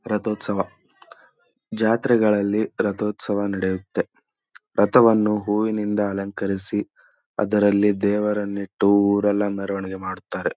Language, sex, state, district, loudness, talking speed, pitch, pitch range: Kannada, male, Karnataka, Dharwad, -22 LUFS, 75 wpm, 105 Hz, 100-105 Hz